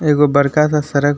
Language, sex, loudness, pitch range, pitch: Bhojpuri, male, -14 LUFS, 140-150 Hz, 145 Hz